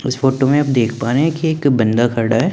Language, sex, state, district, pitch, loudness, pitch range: Hindi, male, Chandigarh, Chandigarh, 130 Hz, -16 LUFS, 120-145 Hz